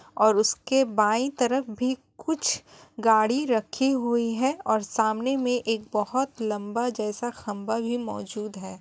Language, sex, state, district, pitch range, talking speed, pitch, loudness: Hindi, female, Bihar, Kishanganj, 215-255 Hz, 145 wpm, 230 Hz, -26 LUFS